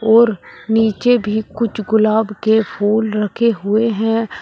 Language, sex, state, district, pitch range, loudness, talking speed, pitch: Hindi, male, Uttar Pradesh, Shamli, 215-230 Hz, -16 LUFS, 135 wpm, 220 Hz